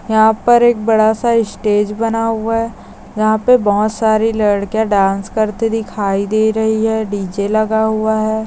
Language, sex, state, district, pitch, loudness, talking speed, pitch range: Hindi, female, Maharashtra, Chandrapur, 220 Hz, -15 LUFS, 165 wpm, 210-225 Hz